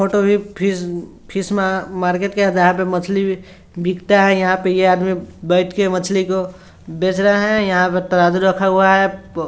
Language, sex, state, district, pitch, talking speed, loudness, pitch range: Hindi, male, Bihar, Sitamarhi, 190 Hz, 185 wpm, -16 LUFS, 180-195 Hz